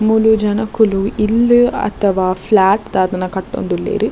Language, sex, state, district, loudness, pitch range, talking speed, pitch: Tulu, female, Karnataka, Dakshina Kannada, -15 LUFS, 190-220 Hz, 100 wpm, 210 Hz